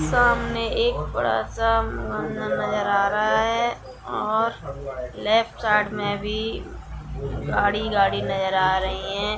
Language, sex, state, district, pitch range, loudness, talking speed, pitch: Hindi, female, Bihar, Saran, 195-225 Hz, -23 LUFS, 130 wpm, 210 Hz